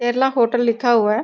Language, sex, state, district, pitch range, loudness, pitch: Hindi, female, Bihar, Sitamarhi, 230-245 Hz, -17 LUFS, 240 Hz